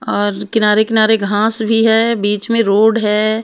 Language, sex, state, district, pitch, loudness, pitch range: Hindi, female, Himachal Pradesh, Shimla, 220 Hz, -13 LUFS, 210-225 Hz